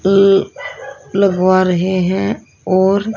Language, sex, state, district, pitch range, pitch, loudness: Hindi, female, Haryana, Rohtak, 185-195 Hz, 190 Hz, -14 LUFS